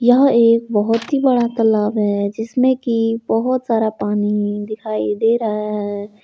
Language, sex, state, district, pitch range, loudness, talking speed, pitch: Hindi, male, Jharkhand, Palamu, 210-235 Hz, -17 LUFS, 155 wpm, 225 Hz